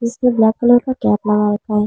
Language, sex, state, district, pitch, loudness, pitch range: Hindi, female, Delhi, New Delhi, 220 Hz, -15 LUFS, 210-245 Hz